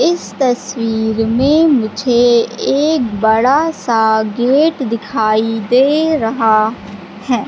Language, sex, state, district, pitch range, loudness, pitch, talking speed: Hindi, female, Madhya Pradesh, Katni, 220-270 Hz, -14 LUFS, 230 Hz, 95 wpm